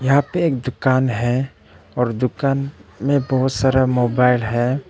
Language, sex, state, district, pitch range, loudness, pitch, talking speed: Hindi, male, Arunachal Pradesh, Papum Pare, 120-135 Hz, -19 LUFS, 130 Hz, 145 wpm